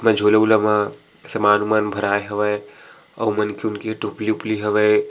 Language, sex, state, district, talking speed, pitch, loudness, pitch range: Chhattisgarhi, male, Chhattisgarh, Sarguja, 165 wpm, 105 Hz, -20 LUFS, 105-110 Hz